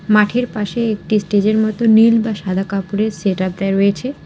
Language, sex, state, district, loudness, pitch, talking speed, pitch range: Bengali, female, West Bengal, Alipurduar, -16 LUFS, 210 Hz, 185 wpm, 195-220 Hz